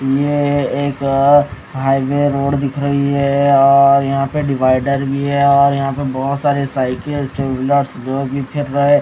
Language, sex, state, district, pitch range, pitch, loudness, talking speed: Hindi, male, Odisha, Khordha, 135-140 Hz, 140 Hz, -15 LUFS, 155 wpm